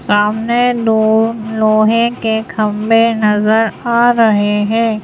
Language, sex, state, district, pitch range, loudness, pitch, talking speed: Hindi, female, Madhya Pradesh, Bhopal, 215-230 Hz, -13 LUFS, 220 Hz, 105 wpm